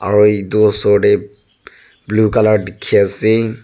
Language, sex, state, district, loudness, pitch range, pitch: Nagamese, male, Nagaland, Dimapur, -13 LUFS, 100-110 Hz, 105 Hz